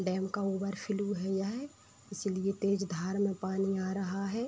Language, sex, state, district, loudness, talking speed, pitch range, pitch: Hindi, female, Uttar Pradesh, Budaun, -34 LUFS, 185 wpm, 190-200 Hz, 195 Hz